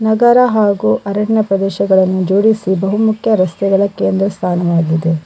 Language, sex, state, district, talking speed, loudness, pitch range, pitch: Kannada, female, Karnataka, Dakshina Kannada, 115 wpm, -13 LUFS, 185-215 Hz, 195 Hz